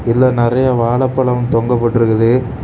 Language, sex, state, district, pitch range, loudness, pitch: Tamil, male, Tamil Nadu, Kanyakumari, 115-130 Hz, -14 LUFS, 125 Hz